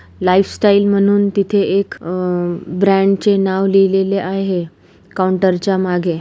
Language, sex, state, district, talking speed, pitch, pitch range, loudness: Marathi, female, Maharashtra, Pune, 135 wpm, 195 Hz, 180-195 Hz, -15 LUFS